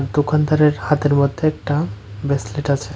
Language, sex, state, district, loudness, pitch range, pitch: Bengali, male, Tripura, West Tripura, -19 LUFS, 140-150 Hz, 145 Hz